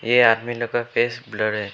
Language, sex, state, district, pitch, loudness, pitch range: Hindi, male, Arunachal Pradesh, Lower Dibang Valley, 120 Hz, -21 LUFS, 110-120 Hz